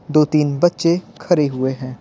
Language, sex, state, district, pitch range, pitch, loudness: Hindi, male, Bihar, Patna, 135-175 Hz, 150 Hz, -18 LUFS